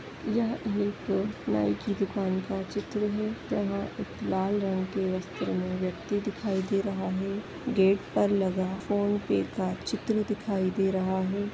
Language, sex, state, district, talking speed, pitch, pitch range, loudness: Hindi, female, Chhattisgarh, Rajnandgaon, 160 wpm, 195 Hz, 190-205 Hz, -29 LUFS